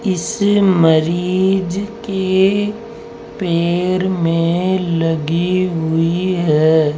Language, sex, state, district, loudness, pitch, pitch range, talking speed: Hindi, male, Rajasthan, Jaipur, -16 LUFS, 180 Hz, 165-195 Hz, 70 wpm